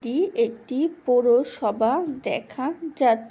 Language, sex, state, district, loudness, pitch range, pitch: Bengali, female, West Bengal, Purulia, -23 LUFS, 230-295 Hz, 250 Hz